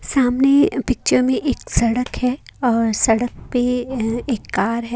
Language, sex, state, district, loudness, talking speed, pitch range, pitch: Hindi, female, Haryana, Jhajjar, -19 LUFS, 155 wpm, 230-250 Hz, 245 Hz